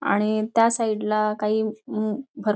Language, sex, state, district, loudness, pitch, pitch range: Marathi, female, Maharashtra, Nagpur, -23 LUFS, 215 Hz, 215-225 Hz